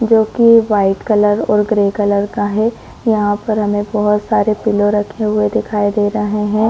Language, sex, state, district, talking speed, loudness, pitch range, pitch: Hindi, female, Chhattisgarh, Korba, 190 wpm, -14 LUFS, 205-215 Hz, 210 Hz